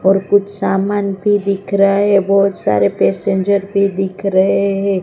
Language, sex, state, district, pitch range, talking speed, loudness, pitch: Hindi, female, Gujarat, Gandhinagar, 195-200 Hz, 180 wpm, -15 LUFS, 195 Hz